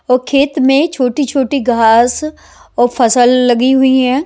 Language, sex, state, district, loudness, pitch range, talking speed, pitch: Hindi, female, Haryana, Jhajjar, -11 LUFS, 245-275 Hz, 140 wpm, 255 Hz